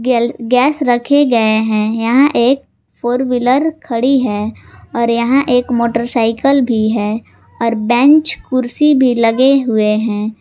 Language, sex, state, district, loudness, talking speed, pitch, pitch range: Hindi, female, Jharkhand, Garhwa, -13 LUFS, 135 wpm, 240 Hz, 225-265 Hz